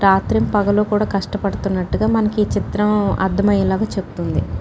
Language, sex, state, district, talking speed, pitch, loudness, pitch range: Telugu, female, Telangana, Nalgonda, 115 wpm, 205 Hz, -18 LUFS, 195-210 Hz